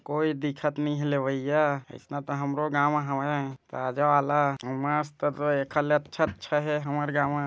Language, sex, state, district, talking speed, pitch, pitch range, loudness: Chhattisgarhi, male, Chhattisgarh, Bilaspur, 170 wpm, 145 Hz, 140-150 Hz, -27 LUFS